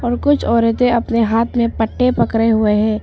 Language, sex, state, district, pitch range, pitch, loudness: Hindi, female, Arunachal Pradesh, Papum Pare, 225-245 Hz, 230 Hz, -15 LUFS